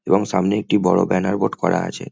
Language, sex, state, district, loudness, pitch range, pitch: Bengali, male, West Bengal, Kolkata, -19 LUFS, 90-105 Hz, 95 Hz